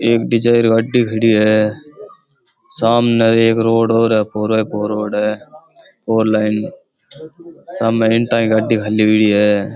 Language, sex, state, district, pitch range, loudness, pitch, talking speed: Rajasthani, male, Rajasthan, Churu, 110-115 Hz, -14 LUFS, 115 Hz, 125 wpm